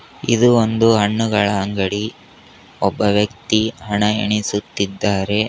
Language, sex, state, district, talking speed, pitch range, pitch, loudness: Kannada, male, Karnataka, Koppal, 85 wpm, 100-110 Hz, 105 Hz, -18 LUFS